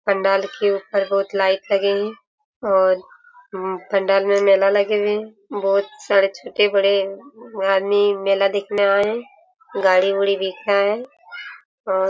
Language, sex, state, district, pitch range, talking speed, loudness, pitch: Hindi, female, Jharkhand, Sahebganj, 195-210 Hz, 150 wpm, -19 LUFS, 200 Hz